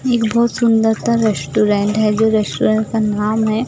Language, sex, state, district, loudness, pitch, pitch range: Hindi, female, Maharashtra, Gondia, -16 LUFS, 220 Hz, 210-230 Hz